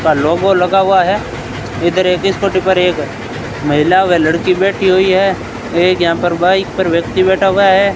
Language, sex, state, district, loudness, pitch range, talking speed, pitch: Hindi, male, Rajasthan, Bikaner, -13 LUFS, 155-190 Hz, 190 wpm, 180 Hz